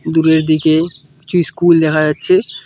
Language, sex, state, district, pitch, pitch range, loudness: Bengali, male, West Bengal, Cooch Behar, 160 Hz, 155-170 Hz, -13 LUFS